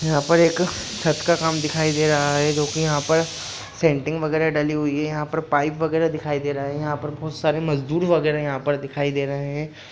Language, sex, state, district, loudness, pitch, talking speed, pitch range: Hindi, male, Bihar, Jahanabad, -22 LUFS, 150 Hz, 235 wpm, 145-160 Hz